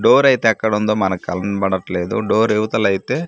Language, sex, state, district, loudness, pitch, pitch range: Telugu, male, Andhra Pradesh, Manyam, -17 LUFS, 100 Hz, 95-110 Hz